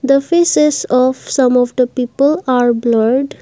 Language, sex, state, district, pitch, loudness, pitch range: English, female, Assam, Kamrup Metropolitan, 255 Hz, -13 LUFS, 250-280 Hz